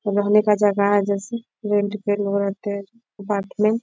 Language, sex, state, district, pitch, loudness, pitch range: Hindi, female, Bihar, Bhagalpur, 205 Hz, -21 LUFS, 200-210 Hz